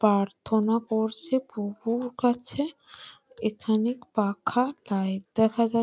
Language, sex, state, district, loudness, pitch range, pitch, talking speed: Bengali, female, West Bengal, Malda, -25 LUFS, 215-245 Hz, 225 Hz, 95 wpm